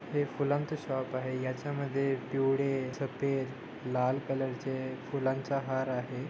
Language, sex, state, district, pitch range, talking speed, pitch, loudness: Marathi, male, Maharashtra, Dhule, 130-140 Hz, 125 wpm, 135 Hz, -33 LUFS